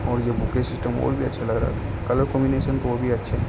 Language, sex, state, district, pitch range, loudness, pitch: Hindi, male, Uttar Pradesh, Ghazipur, 115-125 Hz, -24 LUFS, 120 Hz